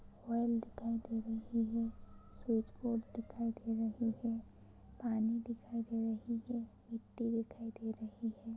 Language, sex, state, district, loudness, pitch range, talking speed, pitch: Hindi, female, Uttar Pradesh, Ghazipur, -40 LUFS, 225-230 Hz, 140 wpm, 230 Hz